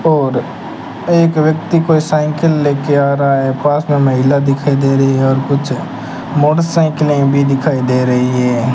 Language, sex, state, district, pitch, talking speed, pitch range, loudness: Hindi, male, Rajasthan, Bikaner, 140 Hz, 165 wpm, 135-155 Hz, -13 LUFS